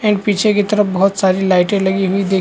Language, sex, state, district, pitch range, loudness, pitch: Hindi, male, Chhattisgarh, Korba, 190-205 Hz, -14 LUFS, 195 Hz